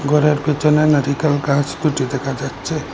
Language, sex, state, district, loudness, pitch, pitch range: Bengali, male, Assam, Hailakandi, -17 LUFS, 145 Hz, 140-150 Hz